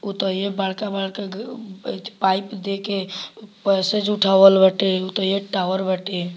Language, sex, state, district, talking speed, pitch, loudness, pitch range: Bhojpuri, male, Bihar, Muzaffarpur, 130 wpm, 195 Hz, -20 LUFS, 190-205 Hz